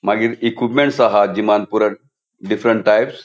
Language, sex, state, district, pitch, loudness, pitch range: Konkani, male, Goa, North and South Goa, 105 Hz, -16 LUFS, 105-115 Hz